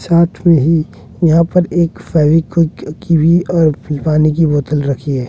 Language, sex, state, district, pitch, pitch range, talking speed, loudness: Hindi, male, Bihar, West Champaran, 160 Hz, 150-170 Hz, 170 wpm, -13 LUFS